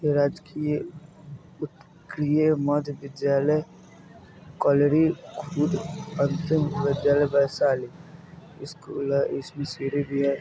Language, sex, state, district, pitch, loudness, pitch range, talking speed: Bajjika, male, Bihar, Vaishali, 150 Hz, -25 LUFS, 140-160 Hz, 75 wpm